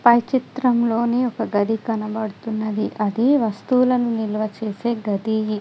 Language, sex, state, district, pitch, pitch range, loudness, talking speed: Telugu, female, Telangana, Adilabad, 225 Hz, 215-240 Hz, -21 LUFS, 105 wpm